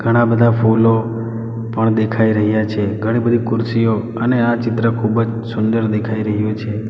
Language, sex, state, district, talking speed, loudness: Gujarati, male, Gujarat, Valsad, 155 wpm, -16 LUFS